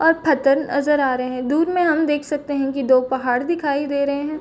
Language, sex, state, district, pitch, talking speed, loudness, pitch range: Hindi, female, Chhattisgarh, Korba, 285 Hz, 245 wpm, -19 LUFS, 270-300 Hz